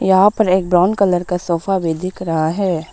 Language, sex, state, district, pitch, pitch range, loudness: Hindi, female, Arunachal Pradesh, Papum Pare, 185 Hz, 170-190 Hz, -16 LUFS